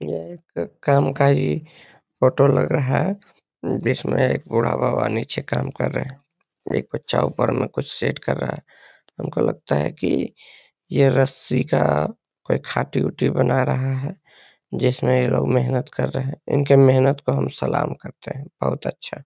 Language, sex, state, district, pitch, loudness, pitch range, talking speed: Hindi, male, Bihar, Lakhisarai, 135 Hz, -21 LUFS, 130-145 Hz, 170 wpm